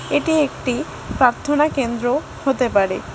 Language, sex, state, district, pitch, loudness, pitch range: Bengali, female, West Bengal, Alipurduar, 265 Hz, -19 LUFS, 245-295 Hz